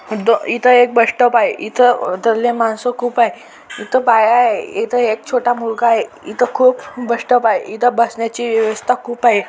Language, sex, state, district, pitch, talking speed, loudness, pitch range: Marathi, male, Maharashtra, Dhule, 240 Hz, 175 wpm, -15 LUFS, 230-245 Hz